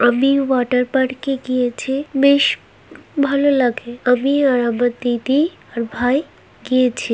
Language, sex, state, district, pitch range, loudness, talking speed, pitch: Bengali, female, West Bengal, Kolkata, 245-275 Hz, -18 LUFS, 120 wpm, 255 Hz